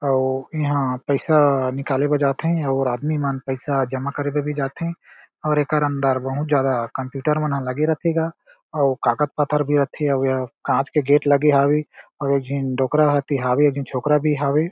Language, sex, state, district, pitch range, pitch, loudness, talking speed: Chhattisgarhi, male, Chhattisgarh, Jashpur, 135-150 Hz, 140 Hz, -21 LUFS, 185 wpm